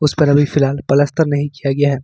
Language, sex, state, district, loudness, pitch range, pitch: Hindi, male, Jharkhand, Ranchi, -15 LUFS, 140-145 Hz, 145 Hz